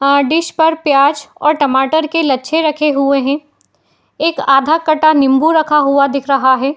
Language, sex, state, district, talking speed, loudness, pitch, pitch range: Hindi, female, Uttar Pradesh, Jalaun, 175 wpm, -13 LUFS, 290 Hz, 275-315 Hz